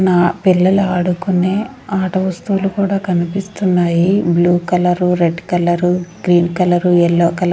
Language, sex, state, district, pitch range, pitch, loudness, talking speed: Telugu, female, Andhra Pradesh, Sri Satya Sai, 175-190 Hz, 180 Hz, -15 LUFS, 125 wpm